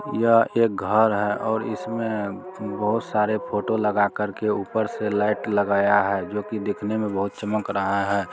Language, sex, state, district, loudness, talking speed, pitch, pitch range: Maithili, male, Bihar, Supaul, -23 LUFS, 175 wpm, 105 Hz, 100-110 Hz